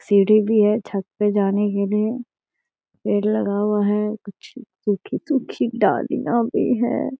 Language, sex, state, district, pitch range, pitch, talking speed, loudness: Hindi, female, Bihar, Gaya, 205-235 Hz, 210 Hz, 140 wpm, -20 LUFS